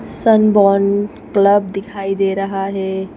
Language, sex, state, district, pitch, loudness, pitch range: Hindi, female, Madhya Pradesh, Bhopal, 195 Hz, -15 LUFS, 195-205 Hz